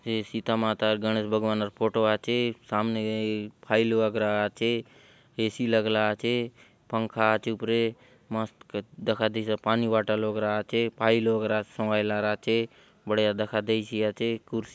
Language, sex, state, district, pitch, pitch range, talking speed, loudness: Halbi, male, Chhattisgarh, Bastar, 110 Hz, 110-115 Hz, 165 wpm, -27 LUFS